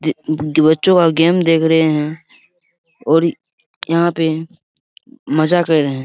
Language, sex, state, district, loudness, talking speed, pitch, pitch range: Hindi, male, Bihar, Araria, -15 LUFS, 140 wpm, 160 Hz, 155-170 Hz